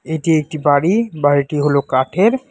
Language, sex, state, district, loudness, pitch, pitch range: Bengali, male, West Bengal, Alipurduar, -16 LUFS, 155 Hz, 145-180 Hz